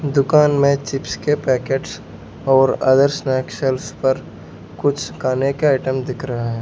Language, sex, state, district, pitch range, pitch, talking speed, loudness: Hindi, male, Arunachal Pradesh, Lower Dibang Valley, 130-140 Hz, 135 Hz, 155 wpm, -18 LUFS